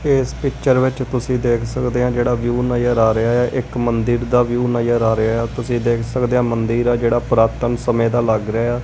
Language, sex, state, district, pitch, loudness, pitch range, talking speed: Punjabi, male, Punjab, Kapurthala, 120 Hz, -18 LUFS, 115-125 Hz, 210 wpm